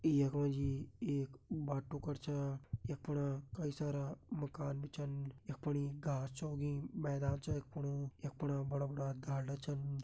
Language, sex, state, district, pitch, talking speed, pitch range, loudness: Hindi, male, Uttarakhand, Tehri Garhwal, 140 Hz, 175 wpm, 140-145 Hz, -41 LUFS